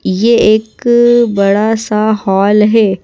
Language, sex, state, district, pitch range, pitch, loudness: Hindi, female, Madhya Pradesh, Bhopal, 200-225 Hz, 215 Hz, -10 LUFS